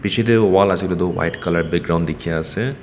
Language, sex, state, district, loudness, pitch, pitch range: Nagamese, male, Nagaland, Kohima, -18 LUFS, 90 Hz, 85-100 Hz